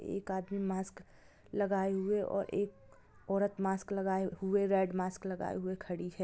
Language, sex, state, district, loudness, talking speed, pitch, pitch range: Hindi, female, Bihar, Gopalganj, -35 LUFS, 165 wpm, 190 Hz, 185-200 Hz